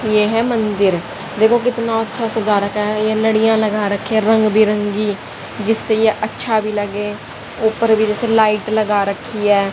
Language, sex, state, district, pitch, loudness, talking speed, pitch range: Hindi, female, Haryana, Jhajjar, 215 Hz, -16 LUFS, 175 wpm, 210-220 Hz